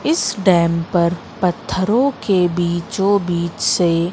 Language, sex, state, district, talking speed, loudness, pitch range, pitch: Hindi, female, Madhya Pradesh, Katni, 115 wpm, -17 LUFS, 170-200 Hz, 180 Hz